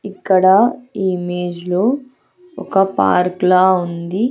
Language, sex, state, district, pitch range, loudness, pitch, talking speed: Telugu, female, Andhra Pradesh, Sri Satya Sai, 180-230 Hz, -16 LUFS, 190 Hz, 110 wpm